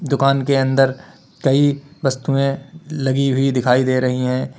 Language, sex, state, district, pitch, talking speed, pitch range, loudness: Hindi, male, Uttar Pradesh, Lalitpur, 135 Hz, 130 wpm, 130-140 Hz, -18 LUFS